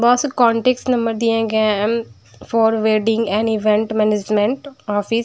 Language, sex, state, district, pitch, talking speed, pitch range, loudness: Hindi, female, Bihar, Patna, 225 Hz, 150 wpm, 215-235 Hz, -18 LUFS